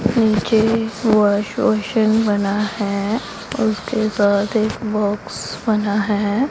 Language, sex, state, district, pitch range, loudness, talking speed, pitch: Hindi, female, Punjab, Pathankot, 205-220 Hz, -18 LUFS, 110 wpm, 215 Hz